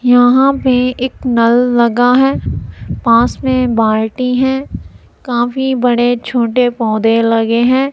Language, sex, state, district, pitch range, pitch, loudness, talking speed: Hindi, female, Punjab, Kapurthala, 235-255 Hz, 245 Hz, -12 LUFS, 115 wpm